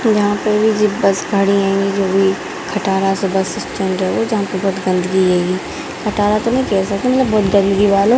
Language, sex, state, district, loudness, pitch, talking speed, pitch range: Hindi, female, Bihar, Darbhanga, -16 LUFS, 200 Hz, 235 wpm, 195-210 Hz